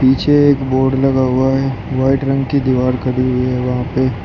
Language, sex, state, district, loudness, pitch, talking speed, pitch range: Hindi, male, Uttar Pradesh, Shamli, -15 LUFS, 130 Hz, 210 wpm, 125-135 Hz